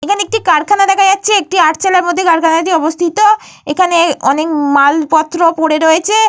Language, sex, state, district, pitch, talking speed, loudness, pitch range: Bengali, female, Jharkhand, Jamtara, 335 Hz, 145 wpm, -11 LUFS, 315-390 Hz